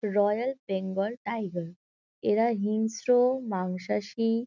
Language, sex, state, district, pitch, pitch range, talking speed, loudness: Bengali, female, West Bengal, Kolkata, 210 Hz, 195-230 Hz, 95 wpm, -28 LUFS